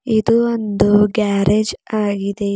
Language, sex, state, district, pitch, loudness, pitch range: Kannada, female, Karnataka, Bidar, 210 Hz, -16 LUFS, 205-220 Hz